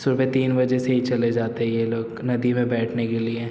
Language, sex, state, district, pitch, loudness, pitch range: Hindi, male, Uttar Pradesh, Muzaffarnagar, 120 Hz, -23 LUFS, 115-125 Hz